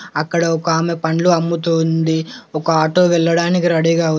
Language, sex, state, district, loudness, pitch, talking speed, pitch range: Telugu, male, Telangana, Komaram Bheem, -16 LUFS, 165 Hz, 145 wpm, 160-170 Hz